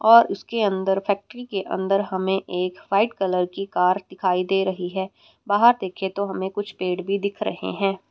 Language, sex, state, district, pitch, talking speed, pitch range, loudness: Hindi, female, Haryana, Rohtak, 195 Hz, 190 wpm, 190-205 Hz, -23 LUFS